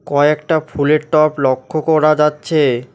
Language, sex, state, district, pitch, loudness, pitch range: Bengali, male, West Bengal, Alipurduar, 150 Hz, -15 LUFS, 145-155 Hz